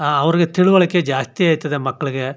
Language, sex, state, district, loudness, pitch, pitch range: Kannada, male, Karnataka, Chamarajanagar, -17 LUFS, 150 Hz, 135-175 Hz